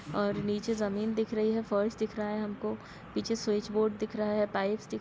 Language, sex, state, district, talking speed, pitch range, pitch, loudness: Hindi, female, Bihar, Samastipur, 225 wpm, 205-220 Hz, 215 Hz, -32 LUFS